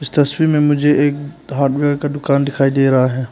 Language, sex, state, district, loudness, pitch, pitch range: Hindi, male, Arunachal Pradesh, Papum Pare, -15 LUFS, 145 Hz, 135-145 Hz